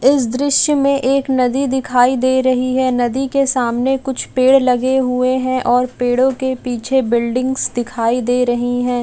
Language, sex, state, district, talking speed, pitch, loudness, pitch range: Hindi, female, Bihar, Gaya, 175 wpm, 255 Hz, -16 LUFS, 245-265 Hz